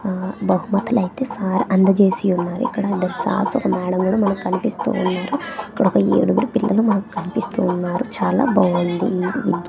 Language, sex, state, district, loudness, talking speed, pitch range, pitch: Telugu, female, Andhra Pradesh, Manyam, -19 LUFS, 150 wpm, 185-210 Hz, 190 Hz